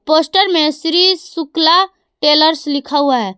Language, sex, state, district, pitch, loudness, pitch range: Hindi, female, Jharkhand, Garhwa, 320 Hz, -13 LUFS, 295-360 Hz